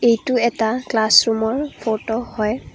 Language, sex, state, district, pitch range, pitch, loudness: Assamese, female, Assam, Kamrup Metropolitan, 220-240 Hz, 225 Hz, -18 LUFS